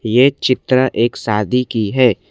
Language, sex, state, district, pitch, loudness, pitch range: Hindi, male, Assam, Kamrup Metropolitan, 125 Hz, -15 LUFS, 110-130 Hz